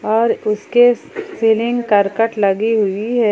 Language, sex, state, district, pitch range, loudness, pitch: Hindi, female, Jharkhand, Palamu, 210-235 Hz, -16 LUFS, 225 Hz